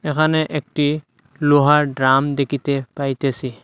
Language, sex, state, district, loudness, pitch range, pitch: Bengali, male, Assam, Hailakandi, -18 LUFS, 135-150 Hz, 140 Hz